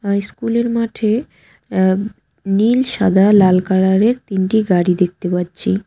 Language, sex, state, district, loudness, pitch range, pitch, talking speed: Bengali, female, West Bengal, Cooch Behar, -16 LUFS, 185-220 Hz, 200 Hz, 120 wpm